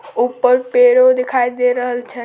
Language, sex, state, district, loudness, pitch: Maithili, female, Bihar, Samastipur, -14 LUFS, 250 Hz